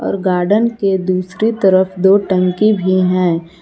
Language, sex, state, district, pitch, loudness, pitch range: Hindi, female, Jharkhand, Palamu, 185 Hz, -14 LUFS, 180-200 Hz